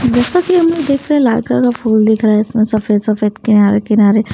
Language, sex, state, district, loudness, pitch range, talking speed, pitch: Hindi, female, Haryana, Charkhi Dadri, -12 LUFS, 215-255 Hz, 220 wpm, 220 Hz